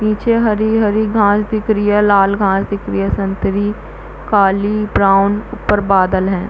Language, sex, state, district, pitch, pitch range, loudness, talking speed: Hindi, female, Chhattisgarh, Bastar, 205 Hz, 195-215 Hz, -14 LUFS, 175 wpm